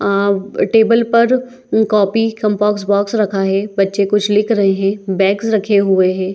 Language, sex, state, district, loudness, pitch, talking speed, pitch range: Hindi, female, Chhattisgarh, Bilaspur, -14 LUFS, 205 Hz, 180 wpm, 195-220 Hz